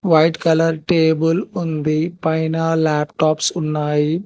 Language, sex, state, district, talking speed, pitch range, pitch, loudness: Telugu, male, Telangana, Hyderabad, 100 wpm, 155-165 Hz, 160 Hz, -18 LUFS